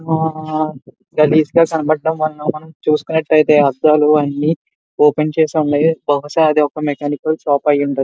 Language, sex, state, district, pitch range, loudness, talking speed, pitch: Telugu, male, Andhra Pradesh, Visakhapatnam, 145-160 Hz, -15 LUFS, 135 wpm, 155 Hz